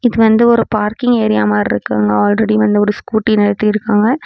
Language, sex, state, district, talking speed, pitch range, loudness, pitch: Tamil, female, Tamil Nadu, Namakkal, 170 wpm, 205-225 Hz, -13 LUFS, 215 Hz